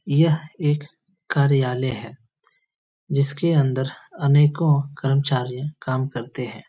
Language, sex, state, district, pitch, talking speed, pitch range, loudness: Hindi, male, Bihar, Lakhisarai, 140 Hz, 100 wpm, 130-150 Hz, -22 LUFS